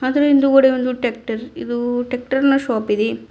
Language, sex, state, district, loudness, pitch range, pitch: Kannada, female, Karnataka, Bidar, -18 LUFS, 235-270 Hz, 250 Hz